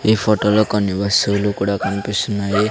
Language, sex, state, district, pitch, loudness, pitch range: Telugu, male, Andhra Pradesh, Sri Satya Sai, 100 Hz, -18 LUFS, 100-105 Hz